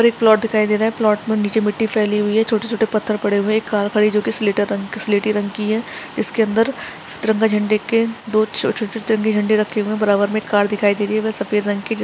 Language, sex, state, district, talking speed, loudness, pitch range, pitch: Hindi, female, Chhattisgarh, Sarguja, 285 wpm, -18 LUFS, 210-220 Hz, 215 Hz